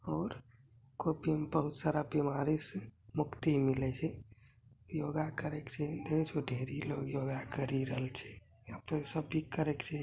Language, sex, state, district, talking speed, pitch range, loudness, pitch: Hindi, male, Bihar, Bhagalpur, 125 wpm, 130-155 Hz, -36 LUFS, 140 Hz